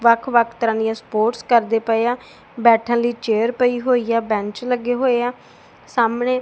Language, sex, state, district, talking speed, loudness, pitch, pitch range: Punjabi, female, Punjab, Kapurthala, 170 wpm, -19 LUFS, 235 Hz, 225-245 Hz